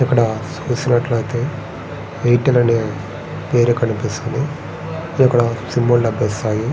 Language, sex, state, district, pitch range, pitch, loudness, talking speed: Telugu, male, Andhra Pradesh, Srikakulam, 110-130 Hz, 120 Hz, -18 LUFS, 100 wpm